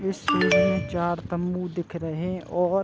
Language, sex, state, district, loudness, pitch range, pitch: Hindi, male, Chhattisgarh, Raigarh, -25 LUFS, 175-185 Hz, 180 Hz